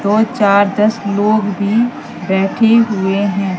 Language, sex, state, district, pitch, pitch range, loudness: Hindi, female, Madhya Pradesh, Katni, 205 Hz, 200-220 Hz, -14 LUFS